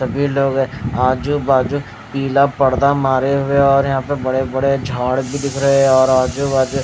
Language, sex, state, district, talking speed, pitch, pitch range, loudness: Hindi, male, Odisha, Khordha, 195 wpm, 135 Hz, 130-140 Hz, -16 LUFS